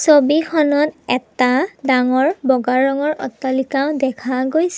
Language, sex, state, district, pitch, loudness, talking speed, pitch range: Assamese, female, Assam, Kamrup Metropolitan, 275 Hz, -17 LUFS, 100 wpm, 260-300 Hz